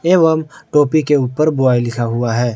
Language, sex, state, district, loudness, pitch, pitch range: Hindi, male, Jharkhand, Ranchi, -15 LUFS, 145 Hz, 120-155 Hz